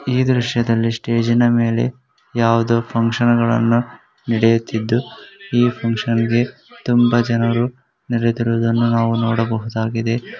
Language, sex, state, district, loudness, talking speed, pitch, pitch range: Kannada, male, Karnataka, Gulbarga, -18 LUFS, 100 wpm, 115 Hz, 115-120 Hz